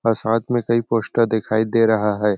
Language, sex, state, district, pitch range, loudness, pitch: Hindi, male, Chhattisgarh, Sarguja, 110-115 Hz, -19 LUFS, 115 Hz